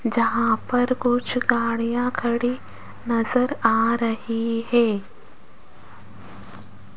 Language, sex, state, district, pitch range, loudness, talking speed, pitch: Hindi, female, Rajasthan, Jaipur, 220-245 Hz, -22 LUFS, 75 wpm, 230 Hz